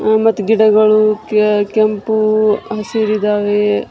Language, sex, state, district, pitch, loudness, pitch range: Kannada, female, Karnataka, Shimoga, 215 Hz, -13 LUFS, 210-215 Hz